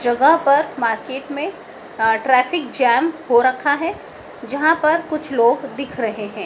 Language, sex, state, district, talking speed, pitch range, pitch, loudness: Hindi, female, Madhya Pradesh, Dhar, 160 wpm, 240-305 Hz, 270 Hz, -18 LUFS